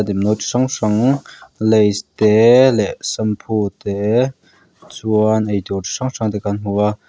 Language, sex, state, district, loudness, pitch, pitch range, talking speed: Mizo, male, Mizoram, Aizawl, -17 LUFS, 110 Hz, 105-115 Hz, 145 wpm